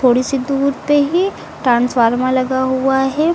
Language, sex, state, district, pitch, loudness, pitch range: Hindi, female, Uttar Pradesh, Lucknow, 265 Hz, -16 LUFS, 255-285 Hz